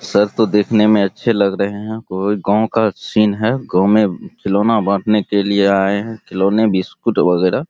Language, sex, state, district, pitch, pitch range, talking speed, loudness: Hindi, male, Bihar, Araria, 105 Hz, 100-110 Hz, 200 wpm, -16 LUFS